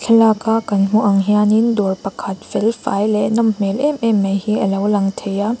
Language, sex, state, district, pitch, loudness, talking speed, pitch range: Mizo, female, Mizoram, Aizawl, 210 Hz, -16 LUFS, 225 wpm, 195-225 Hz